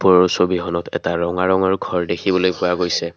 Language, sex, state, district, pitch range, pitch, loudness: Assamese, male, Assam, Kamrup Metropolitan, 85-90 Hz, 90 Hz, -18 LUFS